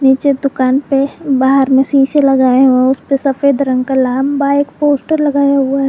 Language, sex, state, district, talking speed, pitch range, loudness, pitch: Hindi, female, Jharkhand, Garhwa, 185 wpm, 265-280 Hz, -12 LUFS, 275 Hz